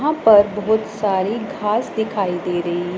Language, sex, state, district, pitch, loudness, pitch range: Hindi, female, Punjab, Pathankot, 210 Hz, -18 LUFS, 185-220 Hz